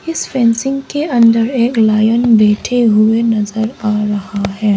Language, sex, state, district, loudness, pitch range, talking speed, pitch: Hindi, female, Arunachal Pradesh, Lower Dibang Valley, -13 LUFS, 215-245 Hz, 150 wpm, 225 Hz